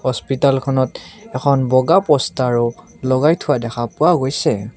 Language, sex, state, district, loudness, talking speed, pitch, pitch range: Assamese, male, Assam, Kamrup Metropolitan, -17 LUFS, 115 wpm, 130 Hz, 125-145 Hz